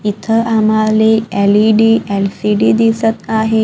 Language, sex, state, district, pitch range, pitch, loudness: Marathi, female, Maharashtra, Gondia, 210-225 Hz, 220 Hz, -12 LUFS